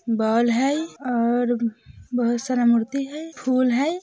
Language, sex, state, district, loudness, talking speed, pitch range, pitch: Bajjika, female, Bihar, Vaishali, -22 LUFS, 135 wpm, 235-275 Hz, 245 Hz